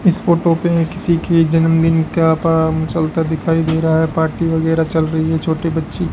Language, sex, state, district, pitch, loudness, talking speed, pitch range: Hindi, male, Rajasthan, Bikaner, 165 Hz, -15 LUFS, 205 wpm, 160-165 Hz